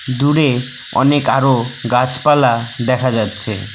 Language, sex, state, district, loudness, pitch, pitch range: Bengali, male, West Bengal, Cooch Behar, -15 LUFS, 125 Hz, 115-135 Hz